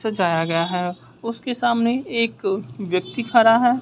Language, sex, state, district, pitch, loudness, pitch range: Hindi, male, Bihar, West Champaran, 230 Hz, -21 LUFS, 185-240 Hz